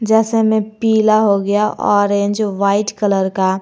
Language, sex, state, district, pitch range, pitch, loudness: Hindi, male, Jharkhand, Garhwa, 200-220 Hz, 210 Hz, -15 LUFS